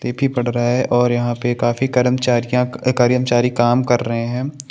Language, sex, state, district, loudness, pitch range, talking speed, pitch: Hindi, male, Maharashtra, Chandrapur, -17 LUFS, 120-125 Hz, 190 wpm, 120 Hz